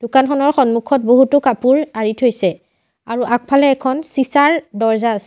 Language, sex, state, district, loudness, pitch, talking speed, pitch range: Assamese, female, Assam, Sonitpur, -15 LUFS, 260 Hz, 135 wpm, 230-275 Hz